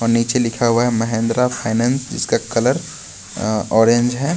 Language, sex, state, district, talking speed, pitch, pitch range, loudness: Hindi, male, Bihar, West Champaran, 165 wpm, 115 Hz, 115-125 Hz, -17 LUFS